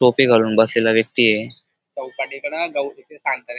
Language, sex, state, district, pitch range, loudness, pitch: Marathi, male, Maharashtra, Dhule, 115-170 Hz, -18 LUFS, 125 Hz